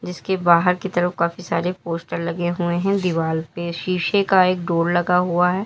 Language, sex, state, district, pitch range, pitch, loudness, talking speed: Hindi, female, Uttar Pradesh, Lalitpur, 170-185 Hz, 175 Hz, -20 LUFS, 200 wpm